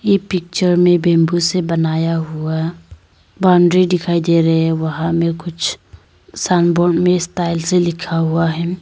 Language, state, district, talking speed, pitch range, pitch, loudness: Hindi, Arunachal Pradesh, Lower Dibang Valley, 155 wpm, 165-180 Hz, 170 Hz, -16 LUFS